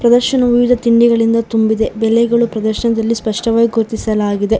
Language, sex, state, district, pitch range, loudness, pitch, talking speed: Kannada, female, Karnataka, Bangalore, 220-235 Hz, -14 LUFS, 230 Hz, 105 wpm